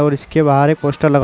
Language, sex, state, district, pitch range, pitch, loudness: Hindi, male, Uttar Pradesh, Jalaun, 140-155 Hz, 145 Hz, -14 LUFS